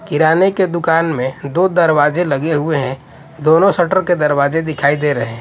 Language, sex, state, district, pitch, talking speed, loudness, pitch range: Hindi, male, Odisha, Nuapada, 160 Hz, 175 wpm, -15 LUFS, 140-175 Hz